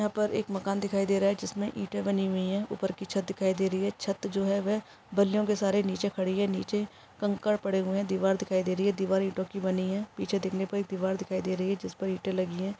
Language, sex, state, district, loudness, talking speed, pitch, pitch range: Hindi, female, Chhattisgarh, Raigarh, -30 LUFS, 270 wpm, 195 Hz, 190-200 Hz